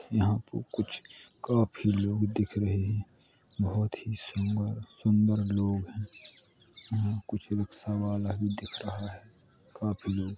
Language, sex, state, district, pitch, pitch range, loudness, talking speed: Hindi, male, Uttar Pradesh, Hamirpur, 105 Hz, 100-110 Hz, -31 LUFS, 140 wpm